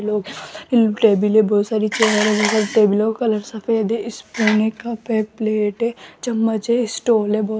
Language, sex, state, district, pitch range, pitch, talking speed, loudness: Hindi, female, Rajasthan, Jaipur, 215-230 Hz, 220 Hz, 180 wpm, -18 LUFS